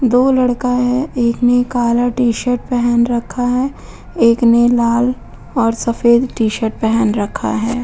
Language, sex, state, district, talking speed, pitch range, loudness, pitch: Hindi, female, Uttar Pradesh, Muzaffarnagar, 145 wpm, 235-250 Hz, -15 LUFS, 240 Hz